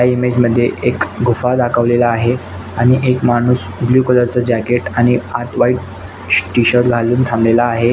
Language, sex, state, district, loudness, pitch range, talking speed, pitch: Marathi, male, Maharashtra, Nagpur, -14 LUFS, 115-125 Hz, 165 wpm, 120 Hz